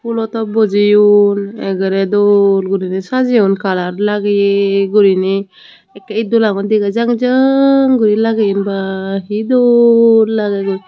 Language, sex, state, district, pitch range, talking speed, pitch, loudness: Chakma, female, Tripura, Unakoti, 195-225 Hz, 120 wpm, 205 Hz, -13 LUFS